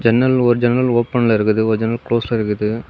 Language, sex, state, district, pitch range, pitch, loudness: Tamil, male, Tamil Nadu, Kanyakumari, 110-120 Hz, 115 Hz, -16 LUFS